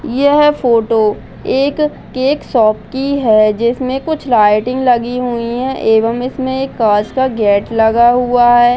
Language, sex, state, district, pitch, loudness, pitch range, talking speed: Hindi, female, Bihar, Muzaffarpur, 245 Hz, -13 LUFS, 225-265 Hz, 165 wpm